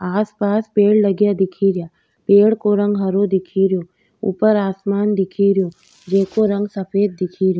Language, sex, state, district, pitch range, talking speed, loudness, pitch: Rajasthani, female, Rajasthan, Nagaur, 190-205 Hz, 125 wpm, -17 LUFS, 200 Hz